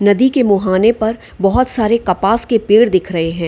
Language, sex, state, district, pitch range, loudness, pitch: Hindi, female, Bihar, Gaya, 190-235 Hz, -14 LUFS, 215 Hz